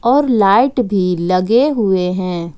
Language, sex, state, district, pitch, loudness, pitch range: Hindi, female, Jharkhand, Ranchi, 195 Hz, -14 LUFS, 180-245 Hz